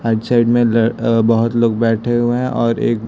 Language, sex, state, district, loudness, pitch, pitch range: Hindi, male, Chhattisgarh, Raipur, -15 LUFS, 115 Hz, 115-120 Hz